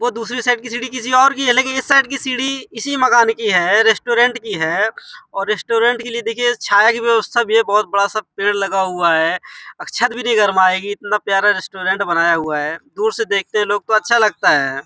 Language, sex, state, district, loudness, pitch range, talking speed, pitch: Hindi, male, Uttar Pradesh, Hamirpur, -16 LUFS, 200-245 Hz, 240 wpm, 225 Hz